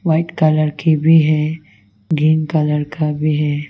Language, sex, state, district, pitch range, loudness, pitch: Hindi, female, Arunachal Pradesh, Longding, 150-160 Hz, -16 LUFS, 155 Hz